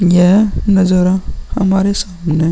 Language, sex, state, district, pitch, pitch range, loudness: Hindi, male, Uttar Pradesh, Muzaffarnagar, 185 Hz, 180-195 Hz, -13 LUFS